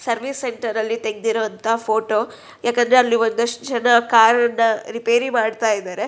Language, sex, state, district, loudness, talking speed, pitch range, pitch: Kannada, female, Karnataka, Shimoga, -18 LUFS, 140 wpm, 220-240 Hz, 230 Hz